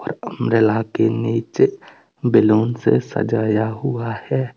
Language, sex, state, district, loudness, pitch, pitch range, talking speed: Hindi, male, Tripura, West Tripura, -19 LUFS, 115 Hz, 110-115 Hz, 105 wpm